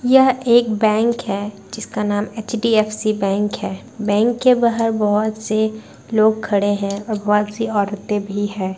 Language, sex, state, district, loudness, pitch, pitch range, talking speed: Hindi, female, Bihar, Saharsa, -18 LUFS, 215 Hz, 205-225 Hz, 155 wpm